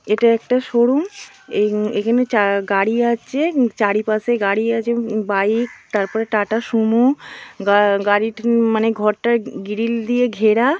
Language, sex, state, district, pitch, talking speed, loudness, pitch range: Bengali, female, West Bengal, Paschim Medinipur, 225 Hz, 115 wpm, -18 LUFS, 210-235 Hz